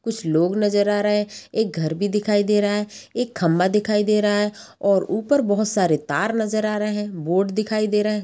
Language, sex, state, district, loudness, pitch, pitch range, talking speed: Hindi, female, Bihar, Sitamarhi, -21 LUFS, 210 Hz, 200-215 Hz, 225 wpm